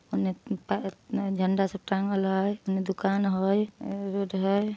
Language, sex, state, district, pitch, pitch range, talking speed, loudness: Magahi, female, Bihar, Samastipur, 195 Hz, 190-200 Hz, 175 wpm, -28 LUFS